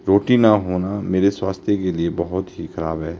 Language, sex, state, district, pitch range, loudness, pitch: Hindi, male, Himachal Pradesh, Shimla, 85-100 Hz, -20 LUFS, 95 Hz